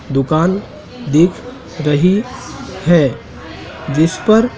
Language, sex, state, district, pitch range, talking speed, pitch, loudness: Hindi, male, Madhya Pradesh, Dhar, 150-195 Hz, 80 wpm, 165 Hz, -15 LUFS